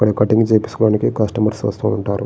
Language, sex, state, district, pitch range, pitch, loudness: Telugu, male, Andhra Pradesh, Srikakulam, 105-110 Hz, 110 Hz, -17 LUFS